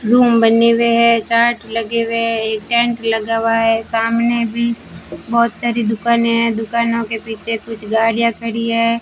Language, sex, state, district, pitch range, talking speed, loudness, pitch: Hindi, female, Rajasthan, Bikaner, 225-235 Hz, 175 wpm, -16 LUFS, 230 Hz